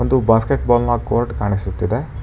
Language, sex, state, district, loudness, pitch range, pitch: Kannada, male, Karnataka, Bangalore, -18 LUFS, 105-120 Hz, 115 Hz